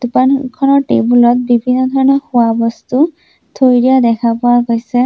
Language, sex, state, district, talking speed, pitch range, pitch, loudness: Assamese, female, Assam, Sonitpur, 140 wpm, 240-265 Hz, 250 Hz, -12 LUFS